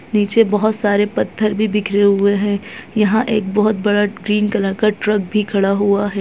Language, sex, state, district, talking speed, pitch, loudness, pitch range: Hindi, female, Uttarakhand, Tehri Garhwal, 195 wpm, 210 Hz, -16 LUFS, 200-215 Hz